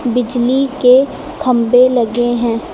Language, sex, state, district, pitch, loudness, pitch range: Hindi, female, Uttar Pradesh, Lucknow, 245 Hz, -13 LUFS, 240-255 Hz